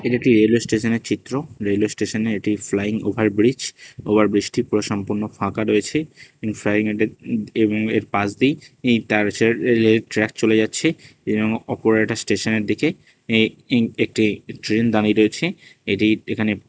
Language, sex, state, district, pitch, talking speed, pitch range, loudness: Bengali, male, Tripura, West Tripura, 110 Hz, 140 wpm, 105-120 Hz, -20 LUFS